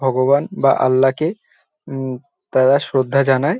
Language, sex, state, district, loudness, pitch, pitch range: Bengali, male, West Bengal, North 24 Parganas, -17 LUFS, 135 Hz, 130-140 Hz